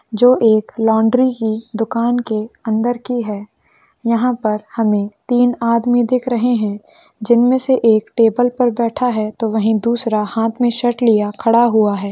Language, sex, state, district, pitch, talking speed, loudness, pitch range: Hindi, female, Rajasthan, Churu, 230 Hz, 165 wpm, -16 LUFS, 220-245 Hz